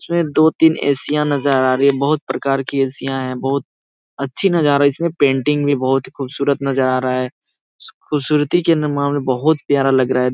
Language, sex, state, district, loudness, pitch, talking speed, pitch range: Hindi, male, Uttar Pradesh, Ghazipur, -17 LUFS, 140 Hz, 205 wpm, 135-150 Hz